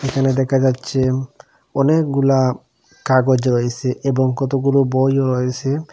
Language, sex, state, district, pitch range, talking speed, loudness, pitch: Bengali, male, Assam, Hailakandi, 130-135 Hz, 100 wpm, -17 LUFS, 135 Hz